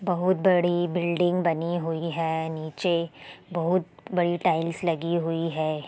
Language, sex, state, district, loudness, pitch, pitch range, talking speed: Hindi, female, Bihar, Sitamarhi, -26 LUFS, 170 Hz, 165-175 Hz, 145 wpm